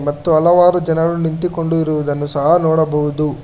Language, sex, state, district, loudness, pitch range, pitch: Kannada, male, Karnataka, Bangalore, -15 LUFS, 150-170 Hz, 160 Hz